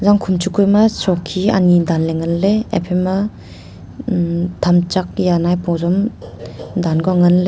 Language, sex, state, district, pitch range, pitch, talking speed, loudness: Wancho, female, Arunachal Pradesh, Longding, 175-195 Hz, 180 Hz, 145 wpm, -16 LUFS